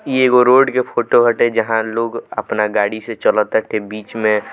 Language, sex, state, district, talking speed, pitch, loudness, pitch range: Bhojpuri, male, Bihar, Muzaffarpur, 200 wpm, 115 Hz, -16 LUFS, 110-120 Hz